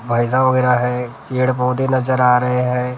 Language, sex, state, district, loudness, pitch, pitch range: Hindi, male, Maharashtra, Gondia, -17 LUFS, 125 Hz, 125-130 Hz